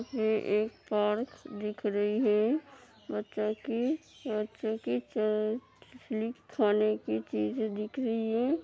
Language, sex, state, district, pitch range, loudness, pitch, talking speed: Hindi, female, Uttar Pradesh, Hamirpur, 210-235 Hz, -32 LUFS, 220 Hz, 110 wpm